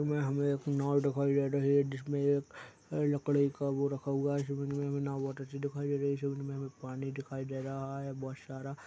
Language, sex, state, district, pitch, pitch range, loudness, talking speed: Hindi, male, Chhattisgarh, Balrampur, 140 Hz, 135-140 Hz, -34 LUFS, 250 wpm